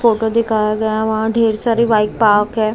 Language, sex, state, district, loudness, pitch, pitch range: Hindi, female, Maharashtra, Mumbai Suburban, -15 LUFS, 220 Hz, 215-230 Hz